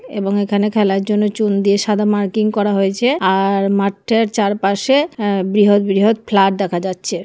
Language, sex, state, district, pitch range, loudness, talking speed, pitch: Bengali, male, West Bengal, Kolkata, 195-210 Hz, -16 LUFS, 155 wpm, 205 Hz